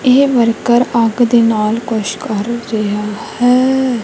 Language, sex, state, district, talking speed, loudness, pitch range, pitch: Punjabi, female, Punjab, Kapurthala, 135 wpm, -14 LUFS, 215-245 Hz, 235 Hz